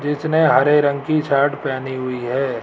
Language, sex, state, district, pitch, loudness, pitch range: Hindi, male, Rajasthan, Jaipur, 140 Hz, -18 LUFS, 130-150 Hz